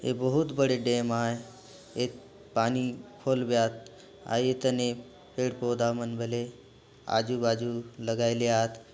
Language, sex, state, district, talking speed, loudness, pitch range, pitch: Halbi, male, Chhattisgarh, Bastar, 130 wpm, -29 LUFS, 115-125 Hz, 120 Hz